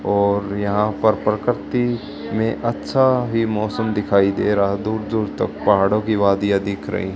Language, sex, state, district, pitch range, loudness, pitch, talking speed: Hindi, female, Haryana, Charkhi Dadri, 100-110 Hz, -19 LUFS, 105 Hz, 160 wpm